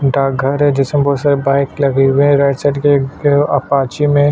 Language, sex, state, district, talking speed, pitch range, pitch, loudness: Hindi, male, Chhattisgarh, Sukma, 195 wpm, 135-145 Hz, 140 Hz, -13 LUFS